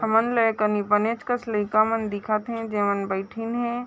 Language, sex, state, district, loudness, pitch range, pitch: Chhattisgarhi, female, Chhattisgarh, Raigarh, -24 LUFS, 210-230 Hz, 220 Hz